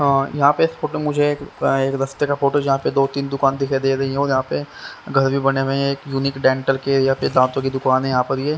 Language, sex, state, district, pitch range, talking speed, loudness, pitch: Hindi, male, Haryana, Rohtak, 135-140 Hz, 285 wpm, -19 LUFS, 135 Hz